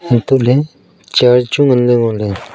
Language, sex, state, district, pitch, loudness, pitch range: Wancho, male, Arunachal Pradesh, Longding, 125 Hz, -12 LUFS, 120-135 Hz